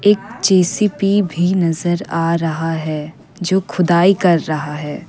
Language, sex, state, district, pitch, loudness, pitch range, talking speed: Hindi, female, Assam, Kamrup Metropolitan, 175 Hz, -16 LUFS, 165-190 Hz, 140 wpm